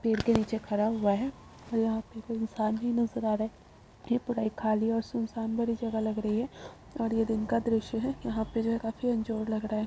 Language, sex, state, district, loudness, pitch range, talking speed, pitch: Hindi, female, Uttar Pradesh, Budaun, -31 LUFS, 220-230 Hz, 250 wpm, 225 Hz